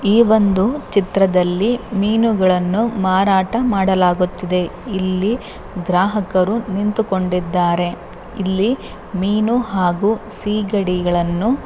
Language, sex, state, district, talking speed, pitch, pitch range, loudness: Kannada, female, Karnataka, Bellary, 70 wpm, 195 Hz, 180-215 Hz, -17 LUFS